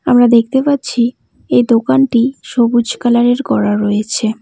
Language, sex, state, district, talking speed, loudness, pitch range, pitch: Bengali, female, West Bengal, Cooch Behar, 135 wpm, -13 LUFS, 230-255 Hz, 240 Hz